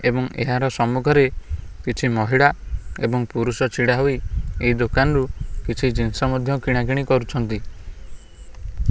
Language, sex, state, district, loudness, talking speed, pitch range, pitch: Odia, male, Odisha, Khordha, -21 LUFS, 120 wpm, 115-130 Hz, 125 Hz